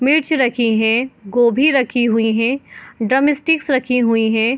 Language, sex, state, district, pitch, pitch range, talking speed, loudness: Hindi, female, Bihar, Gopalganj, 250 Hz, 225-270 Hz, 170 wpm, -16 LUFS